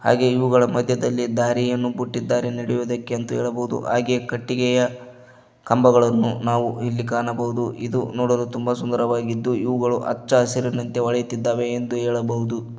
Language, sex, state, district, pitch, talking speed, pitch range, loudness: Kannada, male, Karnataka, Koppal, 120 Hz, 110 wpm, 120-125 Hz, -21 LUFS